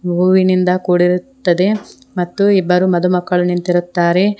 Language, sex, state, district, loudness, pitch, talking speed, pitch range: Kannada, female, Karnataka, Koppal, -14 LUFS, 180 Hz, 95 wpm, 175-190 Hz